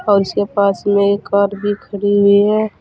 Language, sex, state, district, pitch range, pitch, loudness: Hindi, female, Uttar Pradesh, Saharanpur, 200-205 Hz, 200 Hz, -15 LUFS